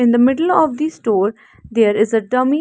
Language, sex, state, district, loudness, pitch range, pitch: English, female, Haryana, Rohtak, -16 LUFS, 215-275 Hz, 240 Hz